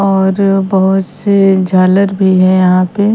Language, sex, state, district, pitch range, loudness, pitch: Hindi, female, Himachal Pradesh, Shimla, 185-195 Hz, -10 LUFS, 190 Hz